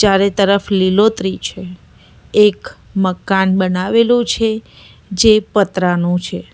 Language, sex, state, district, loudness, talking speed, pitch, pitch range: Gujarati, female, Gujarat, Valsad, -14 LUFS, 110 wpm, 195 Hz, 185-215 Hz